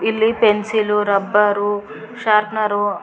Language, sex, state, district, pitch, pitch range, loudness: Kannada, female, Karnataka, Raichur, 210 Hz, 205-215 Hz, -17 LUFS